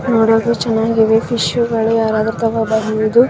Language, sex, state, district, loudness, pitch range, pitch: Kannada, female, Karnataka, Raichur, -15 LUFS, 220-235 Hz, 225 Hz